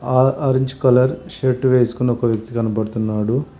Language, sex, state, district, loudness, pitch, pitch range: Telugu, male, Telangana, Hyderabad, -18 LUFS, 125 Hz, 115-130 Hz